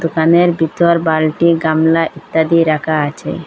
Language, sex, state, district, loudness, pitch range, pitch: Bengali, female, Assam, Hailakandi, -13 LUFS, 160-170 Hz, 160 Hz